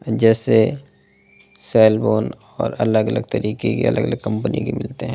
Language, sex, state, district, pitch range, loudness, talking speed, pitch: Hindi, male, Delhi, New Delhi, 105-115 Hz, -19 LUFS, 175 wpm, 110 Hz